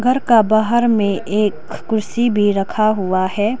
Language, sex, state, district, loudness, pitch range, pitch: Hindi, female, Arunachal Pradesh, Lower Dibang Valley, -16 LUFS, 205-230 Hz, 215 Hz